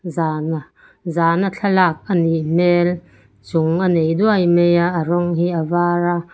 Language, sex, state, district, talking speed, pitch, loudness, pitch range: Mizo, female, Mizoram, Aizawl, 170 wpm, 175 Hz, -17 LUFS, 165-175 Hz